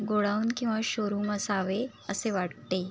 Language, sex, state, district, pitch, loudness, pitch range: Marathi, female, Maharashtra, Sindhudurg, 210 Hz, -30 LUFS, 195-220 Hz